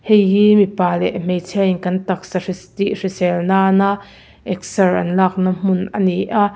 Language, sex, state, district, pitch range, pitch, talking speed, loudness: Mizo, female, Mizoram, Aizawl, 185-200 Hz, 190 Hz, 175 wpm, -17 LUFS